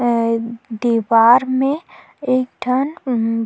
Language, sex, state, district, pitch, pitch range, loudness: Chhattisgarhi, female, Chhattisgarh, Sukma, 245 Hz, 230-265 Hz, -17 LUFS